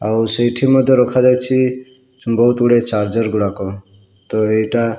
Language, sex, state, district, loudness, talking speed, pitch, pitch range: Odia, male, Odisha, Malkangiri, -15 LUFS, 120 wpm, 115 Hz, 110-125 Hz